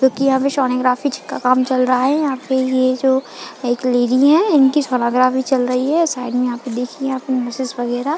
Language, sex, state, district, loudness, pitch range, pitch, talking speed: Hindi, female, Chhattisgarh, Bilaspur, -17 LUFS, 250-270 Hz, 260 Hz, 215 wpm